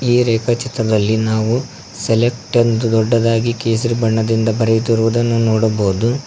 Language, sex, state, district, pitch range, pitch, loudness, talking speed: Kannada, male, Karnataka, Koppal, 110-120 Hz, 115 Hz, -16 LUFS, 105 wpm